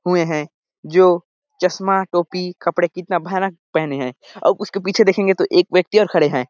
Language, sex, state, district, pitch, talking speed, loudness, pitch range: Hindi, male, Chhattisgarh, Sarguja, 180 Hz, 185 wpm, -18 LUFS, 170-195 Hz